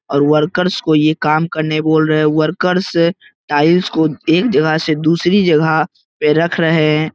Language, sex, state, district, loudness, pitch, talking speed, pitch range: Hindi, male, Bihar, Lakhisarai, -14 LUFS, 155 Hz, 175 wpm, 155-170 Hz